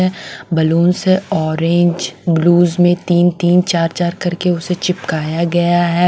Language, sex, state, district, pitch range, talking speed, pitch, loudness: Hindi, female, Bihar, West Champaran, 165-180 Hz, 130 wpm, 175 Hz, -15 LUFS